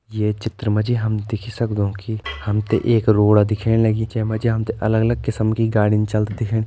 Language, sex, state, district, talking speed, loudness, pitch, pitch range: Kumaoni, male, Uttarakhand, Tehri Garhwal, 205 wpm, -20 LUFS, 110 Hz, 105-115 Hz